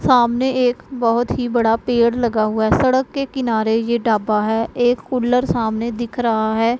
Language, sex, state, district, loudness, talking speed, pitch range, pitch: Hindi, female, Punjab, Pathankot, -18 LUFS, 185 wpm, 225-250 Hz, 235 Hz